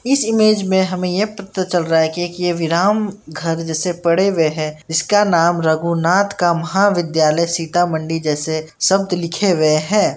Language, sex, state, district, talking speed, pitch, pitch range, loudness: Hindi, female, Bihar, Sitamarhi, 170 wpm, 175 Hz, 160-195 Hz, -17 LUFS